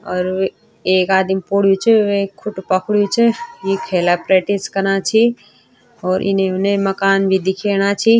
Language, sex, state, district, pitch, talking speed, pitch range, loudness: Garhwali, female, Uttarakhand, Tehri Garhwal, 195 Hz, 145 wpm, 190-210 Hz, -16 LUFS